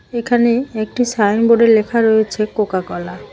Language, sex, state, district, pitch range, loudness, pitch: Bengali, female, West Bengal, Cooch Behar, 210-235 Hz, -15 LUFS, 220 Hz